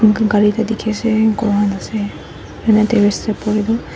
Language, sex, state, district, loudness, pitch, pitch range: Nagamese, female, Nagaland, Dimapur, -16 LUFS, 215 Hz, 210-220 Hz